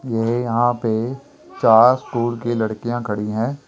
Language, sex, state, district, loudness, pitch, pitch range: Hindi, female, Chandigarh, Chandigarh, -19 LUFS, 120 Hz, 115-120 Hz